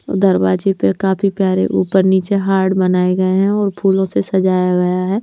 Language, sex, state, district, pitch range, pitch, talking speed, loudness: Hindi, female, Punjab, Pathankot, 185-195 Hz, 190 Hz, 195 wpm, -15 LUFS